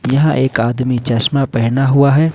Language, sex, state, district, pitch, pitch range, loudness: Hindi, male, Jharkhand, Ranchi, 130 Hz, 120-140 Hz, -14 LUFS